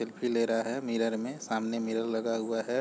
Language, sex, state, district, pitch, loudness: Hindi, male, Chhattisgarh, Raigarh, 115 Hz, -31 LUFS